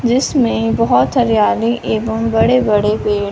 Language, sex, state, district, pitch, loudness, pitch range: Hindi, female, Punjab, Fazilka, 220 Hz, -14 LUFS, 205-240 Hz